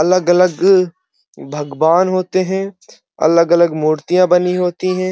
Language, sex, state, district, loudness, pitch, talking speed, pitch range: Hindi, male, Uttar Pradesh, Muzaffarnagar, -14 LUFS, 180 Hz, 105 wpm, 170-185 Hz